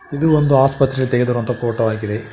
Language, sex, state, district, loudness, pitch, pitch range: Kannada, male, Karnataka, Koppal, -17 LUFS, 125 Hz, 115-135 Hz